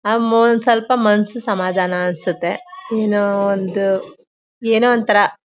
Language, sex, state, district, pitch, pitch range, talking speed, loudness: Kannada, female, Karnataka, Mysore, 210 Hz, 195-230 Hz, 110 wpm, -17 LUFS